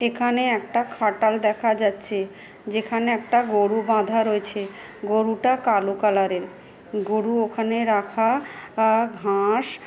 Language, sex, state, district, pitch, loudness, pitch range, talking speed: Bengali, female, West Bengal, Malda, 220 Hz, -22 LUFS, 205-230 Hz, 115 wpm